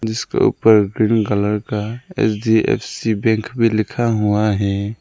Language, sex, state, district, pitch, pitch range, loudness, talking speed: Hindi, male, Arunachal Pradesh, Lower Dibang Valley, 110 Hz, 105-115 Hz, -17 LUFS, 130 wpm